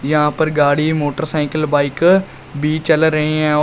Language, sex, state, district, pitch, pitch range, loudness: Hindi, male, Uttar Pradesh, Shamli, 155 Hz, 150-160 Hz, -15 LUFS